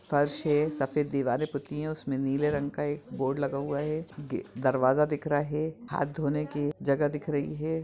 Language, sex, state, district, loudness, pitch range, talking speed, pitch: Hindi, male, Bihar, Madhepura, -30 LUFS, 140-150 Hz, 190 wpm, 145 Hz